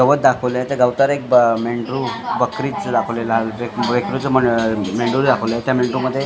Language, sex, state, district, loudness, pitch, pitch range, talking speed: Marathi, male, Maharashtra, Mumbai Suburban, -18 LUFS, 120 Hz, 115-130 Hz, 180 wpm